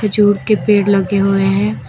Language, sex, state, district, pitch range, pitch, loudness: Hindi, female, Uttar Pradesh, Lucknow, 195-210 Hz, 200 Hz, -13 LUFS